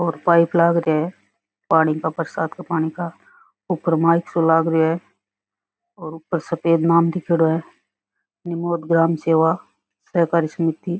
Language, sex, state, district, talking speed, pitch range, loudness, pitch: Rajasthani, female, Rajasthan, Nagaur, 155 wpm, 160-170 Hz, -20 LUFS, 165 Hz